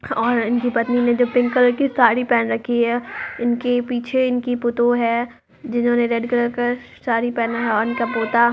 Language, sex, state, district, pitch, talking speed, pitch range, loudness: Hindi, female, Bihar, Muzaffarpur, 240 Hz, 190 wpm, 235-245 Hz, -19 LUFS